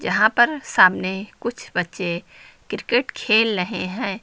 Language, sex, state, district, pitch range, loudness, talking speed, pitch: Hindi, female, Uttar Pradesh, Lucknow, 185-240 Hz, -20 LUFS, 130 wpm, 215 Hz